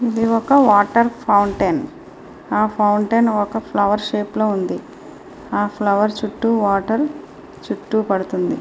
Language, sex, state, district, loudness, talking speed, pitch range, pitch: Telugu, female, Andhra Pradesh, Srikakulam, -18 LUFS, 120 wpm, 205-230 Hz, 215 Hz